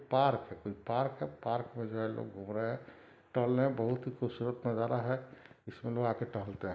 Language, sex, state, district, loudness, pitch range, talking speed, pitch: Hindi, male, Bihar, Sitamarhi, -36 LUFS, 115-125 Hz, 185 wpm, 120 Hz